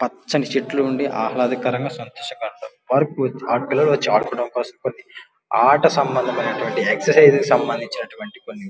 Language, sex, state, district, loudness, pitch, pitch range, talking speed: Telugu, male, Andhra Pradesh, Guntur, -19 LUFS, 140 Hz, 125-205 Hz, 115 wpm